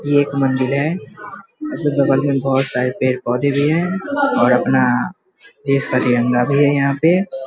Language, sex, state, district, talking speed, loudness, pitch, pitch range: Hindi, male, Bihar, Vaishali, 175 wpm, -17 LUFS, 140 Hz, 135-175 Hz